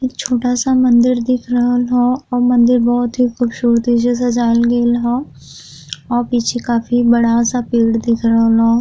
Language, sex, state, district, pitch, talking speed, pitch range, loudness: Bhojpuri, female, Uttar Pradesh, Deoria, 240 Hz, 170 wpm, 235-245 Hz, -14 LUFS